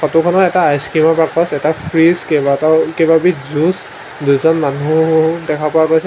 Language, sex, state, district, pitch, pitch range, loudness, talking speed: Assamese, male, Assam, Sonitpur, 160 Hz, 150-165 Hz, -13 LUFS, 160 wpm